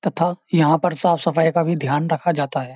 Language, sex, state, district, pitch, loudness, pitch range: Hindi, male, Uttar Pradesh, Jyotiba Phule Nagar, 165 Hz, -19 LUFS, 150-175 Hz